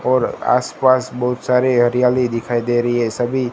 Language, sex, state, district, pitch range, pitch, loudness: Hindi, male, Gujarat, Gandhinagar, 120-125 Hz, 125 Hz, -17 LUFS